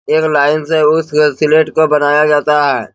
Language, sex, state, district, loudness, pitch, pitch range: Hindi, male, Bihar, Bhagalpur, -11 LUFS, 150 Hz, 150-155 Hz